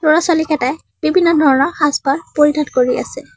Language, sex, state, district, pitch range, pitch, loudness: Assamese, female, Assam, Sonitpur, 275-320 Hz, 300 Hz, -15 LUFS